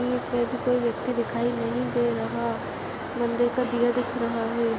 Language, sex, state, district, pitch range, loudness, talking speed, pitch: Hindi, female, Goa, North and South Goa, 235-245 Hz, -26 LUFS, 175 wpm, 240 Hz